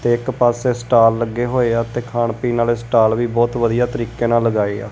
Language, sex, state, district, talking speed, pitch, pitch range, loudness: Punjabi, male, Punjab, Kapurthala, 230 wpm, 120 Hz, 115-120 Hz, -17 LUFS